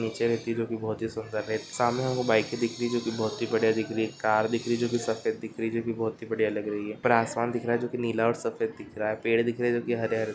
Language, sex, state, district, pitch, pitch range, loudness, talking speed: Hindi, male, Chhattisgarh, Korba, 115 Hz, 110-120 Hz, -28 LUFS, 295 wpm